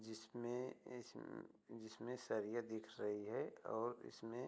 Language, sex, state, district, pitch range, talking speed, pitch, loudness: Hindi, male, Uttar Pradesh, Budaun, 110-120 Hz, 160 wpm, 115 Hz, -48 LUFS